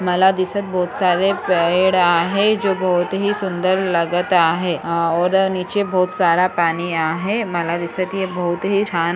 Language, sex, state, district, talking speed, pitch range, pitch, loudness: Marathi, female, Maharashtra, Sindhudurg, 155 wpm, 175-190 Hz, 180 Hz, -18 LUFS